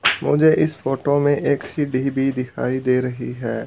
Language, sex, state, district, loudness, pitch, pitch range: Hindi, male, Haryana, Rohtak, -20 LUFS, 135 Hz, 125-145 Hz